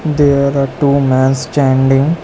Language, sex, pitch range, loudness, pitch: English, male, 135-145 Hz, -12 LUFS, 140 Hz